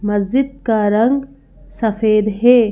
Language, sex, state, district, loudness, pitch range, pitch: Hindi, female, Madhya Pradesh, Bhopal, -16 LUFS, 210-245 Hz, 220 Hz